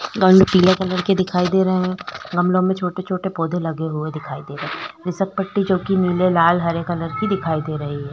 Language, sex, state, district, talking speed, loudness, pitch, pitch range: Hindi, female, Uttar Pradesh, Jyotiba Phule Nagar, 215 wpm, -19 LUFS, 180 Hz, 165-185 Hz